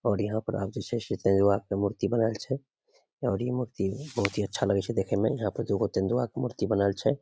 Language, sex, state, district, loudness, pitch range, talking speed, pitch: Maithili, male, Bihar, Samastipur, -29 LUFS, 100-120 Hz, 260 wpm, 105 Hz